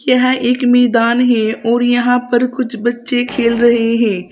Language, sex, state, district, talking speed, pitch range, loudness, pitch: Hindi, female, Uttar Pradesh, Saharanpur, 165 wpm, 235-245 Hz, -13 LUFS, 240 Hz